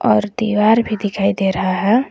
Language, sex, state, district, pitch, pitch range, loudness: Hindi, female, Jharkhand, Garhwa, 205 Hz, 195-220 Hz, -16 LUFS